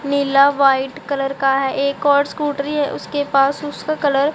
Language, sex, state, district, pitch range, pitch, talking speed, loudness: Hindi, female, Punjab, Pathankot, 275-290 Hz, 280 Hz, 195 wpm, -17 LUFS